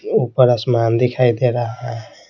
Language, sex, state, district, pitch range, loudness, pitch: Hindi, male, Bihar, Patna, 115-125 Hz, -17 LUFS, 120 Hz